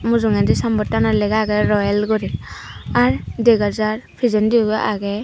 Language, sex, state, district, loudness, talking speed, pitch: Chakma, female, Tripura, Unakoti, -18 LUFS, 125 wpm, 210 Hz